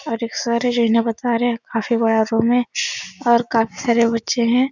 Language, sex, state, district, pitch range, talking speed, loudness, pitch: Hindi, female, Uttar Pradesh, Etah, 230-240 Hz, 230 wpm, -19 LUFS, 235 Hz